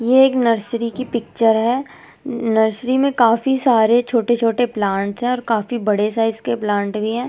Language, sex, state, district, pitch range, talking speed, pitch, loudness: Hindi, female, Delhi, New Delhi, 220-245 Hz, 195 wpm, 235 Hz, -18 LUFS